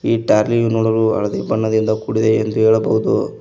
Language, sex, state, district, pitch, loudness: Kannada, male, Karnataka, Koppal, 110 Hz, -16 LUFS